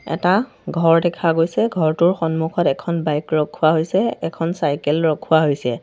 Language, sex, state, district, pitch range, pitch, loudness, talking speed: Assamese, female, Assam, Sonitpur, 155-170 Hz, 165 Hz, -19 LUFS, 145 wpm